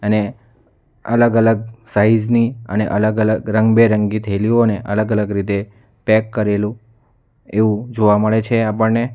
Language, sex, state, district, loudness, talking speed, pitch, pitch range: Gujarati, male, Gujarat, Valsad, -16 LUFS, 120 wpm, 110 Hz, 105-115 Hz